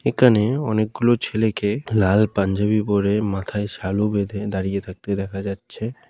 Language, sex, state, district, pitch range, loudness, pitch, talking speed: Bengali, male, West Bengal, Dakshin Dinajpur, 100-110 Hz, -21 LUFS, 105 Hz, 140 wpm